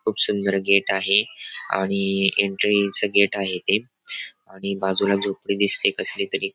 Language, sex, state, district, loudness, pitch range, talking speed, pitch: Marathi, male, Maharashtra, Dhule, -21 LUFS, 95-105 Hz, 135 wpm, 100 Hz